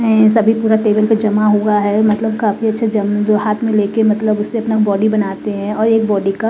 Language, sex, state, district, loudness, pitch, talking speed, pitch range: Hindi, female, Bihar, West Champaran, -14 LUFS, 215 Hz, 250 wpm, 210-220 Hz